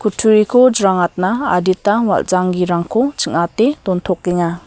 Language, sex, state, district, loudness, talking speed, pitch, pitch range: Garo, female, Meghalaya, West Garo Hills, -15 LUFS, 75 wpm, 185 Hz, 180-220 Hz